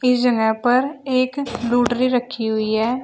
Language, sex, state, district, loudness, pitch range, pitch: Hindi, female, Uttar Pradesh, Shamli, -19 LUFS, 230-255 Hz, 245 Hz